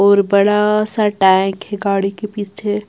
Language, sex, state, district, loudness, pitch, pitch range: Hindi, female, Bihar, West Champaran, -15 LUFS, 205 Hz, 200-210 Hz